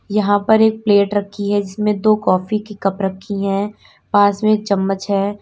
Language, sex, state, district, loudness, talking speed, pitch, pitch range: Hindi, female, Uttar Pradesh, Lalitpur, -17 LUFS, 190 wpm, 205 Hz, 200-210 Hz